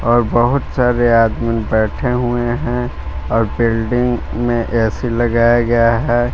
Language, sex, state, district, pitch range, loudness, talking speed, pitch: Hindi, male, Jharkhand, Palamu, 115-120 Hz, -16 LUFS, 135 wpm, 120 Hz